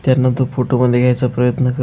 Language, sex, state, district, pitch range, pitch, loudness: Marathi, male, Maharashtra, Aurangabad, 125-130 Hz, 125 Hz, -15 LUFS